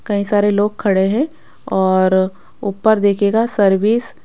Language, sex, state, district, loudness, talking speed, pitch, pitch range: Hindi, female, Rajasthan, Jaipur, -16 LUFS, 140 wpm, 205 Hz, 195-220 Hz